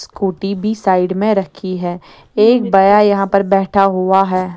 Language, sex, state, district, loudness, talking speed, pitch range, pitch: Hindi, female, Maharashtra, Mumbai Suburban, -14 LUFS, 170 wpm, 185-200 Hz, 195 Hz